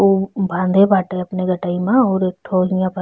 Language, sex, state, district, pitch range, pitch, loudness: Bhojpuri, female, Uttar Pradesh, Ghazipur, 185-195 Hz, 185 Hz, -17 LUFS